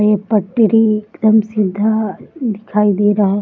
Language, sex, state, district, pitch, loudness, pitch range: Hindi, female, Bihar, Samastipur, 210 Hz, -15 LUFS, 205-220 Hz